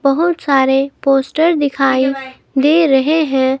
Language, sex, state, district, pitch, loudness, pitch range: Hindi, female, Himachal Pradesh, Shimla, 275 Hz, -14 LUFS, 270-305 Hz